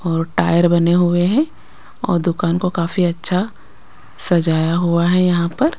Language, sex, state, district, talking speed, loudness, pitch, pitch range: Hindi, female, Maharashtra, Gondia, 155 wpm, -17 LUFS, 175 Hz, 170-180 Hz